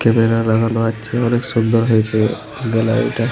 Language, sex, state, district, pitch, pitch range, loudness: Bengali, male, Jharkhand, Jamtara, 115 Hz, 110-115 Hz, -17 LUFS